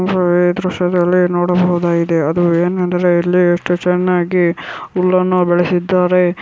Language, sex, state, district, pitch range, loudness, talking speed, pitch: Kannada, female, Karnataka, Shimoga, 175-180 Hz, -14 LUFS, 105 wpm, 180 Hz